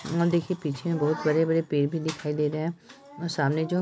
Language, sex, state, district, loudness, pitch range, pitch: Hindi, female, Bihar, Purnia, -27 LUFS, 150-170 Hz, 160 Hz